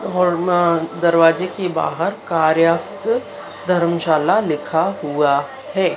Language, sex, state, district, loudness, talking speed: Hindi, female, Madhya Pradesh, Dhar, -18 LUFS, 100 wpm